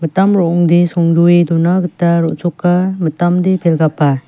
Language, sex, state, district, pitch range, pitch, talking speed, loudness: Garo, female, Meghalaya, West Garo Hills, 165-180 Hz, 175 Hz, 110 wpm, -13 LUFS